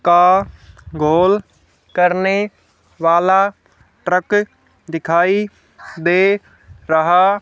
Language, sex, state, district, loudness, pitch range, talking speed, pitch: Hindi, female, Haryana, Charkhi Dadri, -16 LUFS, 170-195 Hz, 65 wpm, 180 Hz